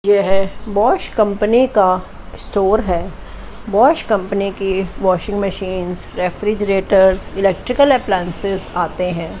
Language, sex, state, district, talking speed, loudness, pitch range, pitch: Hindi, female, Chandigarh, Chandigarh, 110 wpm, -16 LUFS, 185-205 Hz, 195 Hz